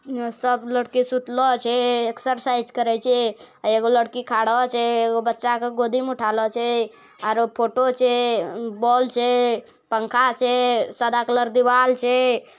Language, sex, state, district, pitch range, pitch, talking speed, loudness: Angika, female, Bihar, Bhagalpur, 230-250 Hz, 240 Hz, 140 wpm, -20 LUFS